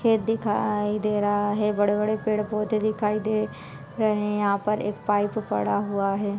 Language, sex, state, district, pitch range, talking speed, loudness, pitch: Hindi, female, Chhattisgarh, Bilaspur, 205-215 Hz, 190 wpm, -25 LUFS, 210 Hz